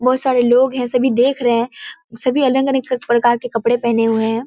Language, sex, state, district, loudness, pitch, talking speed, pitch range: Hindi, female, Bihar, Kishanganj, -16 LUFS, 245 Hz, 215 wpm, 235-260 Hz